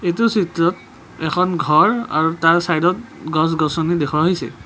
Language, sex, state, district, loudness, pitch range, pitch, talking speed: Assamese, male, Assam, Kamrup Metropolitan, -17 LUFS, 160-180 Hz, 170 Hz, 140 wpm